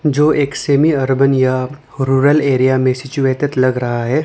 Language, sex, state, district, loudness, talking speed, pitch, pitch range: Hindi, male, Arunachal Pradesh, Lower Dibang Valley, -14 LUFS, 170 wpm, 135 Hz, 130-145 Hz